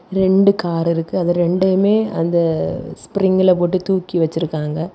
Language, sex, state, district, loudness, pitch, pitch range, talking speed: Tamil, female, Tamil Nadu, Kanyakumari, -17 LUFS, 180 Hz, 165-190 Hz, 120 wpm